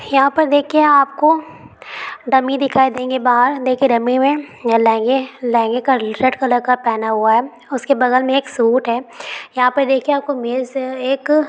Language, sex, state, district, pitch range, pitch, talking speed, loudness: Hindi, female, Bihar, Vaishali, 245-275 Hz, 260 Hz, 170 wpm, -16 LUFS